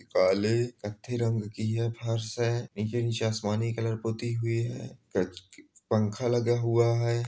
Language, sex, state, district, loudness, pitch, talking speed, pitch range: Hindi, male, Bihar, Supaul, -29 LUFS, 115 Hz, 150 wpm, 110-120 Hz